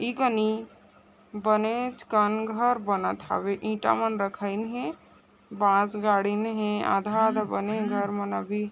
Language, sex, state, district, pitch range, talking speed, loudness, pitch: Chhattisgarhi, female, Chhattisgarh, Raigarh, 205-220 Hz, 145 wpm, -27 LUFS, 215 Hz